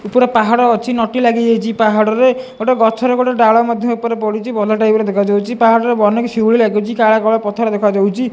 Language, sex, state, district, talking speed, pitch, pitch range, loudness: Odia, male, Odisha, Khordha, 215 wpm, 225 Hz, 215-235 Hz, -13 LUFS